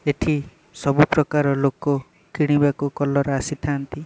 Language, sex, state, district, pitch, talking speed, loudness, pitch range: Odia, male, Odisha, Nuapada, 145 Hz, 105 wpm, -21 LUFS, 140-150 Hz